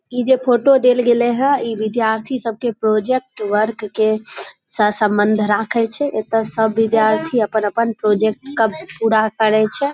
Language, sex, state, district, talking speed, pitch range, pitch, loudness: Maithili, female, Bihar, Saharsa, 165 wpm, 215-245 Hz, 225 Hz, -17 LUFS